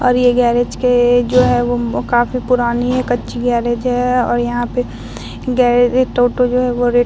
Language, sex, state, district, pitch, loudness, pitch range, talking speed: Hindi, female, Bihar, Vaishali, 245 Hz, -15 LUFS, 240-250 Hz, 195 wpm